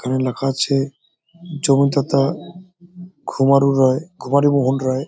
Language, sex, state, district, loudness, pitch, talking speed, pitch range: Bengali, male, West Bengal, Jalpaiguri, -18 LUFS, 140 Hz, 105 wpm, 135-165 Hz